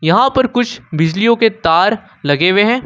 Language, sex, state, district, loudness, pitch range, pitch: Hindi, male, Jharkhand, Ranchi, -13 LUFS, 165-240 Hz, 210 Hz